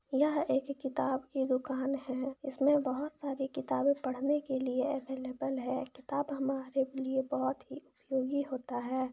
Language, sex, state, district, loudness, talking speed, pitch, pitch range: Hindi, female, Jharkhand, Jamtara, -34 LUFS, 165 wpm, 270 Hz, 260-280 Hz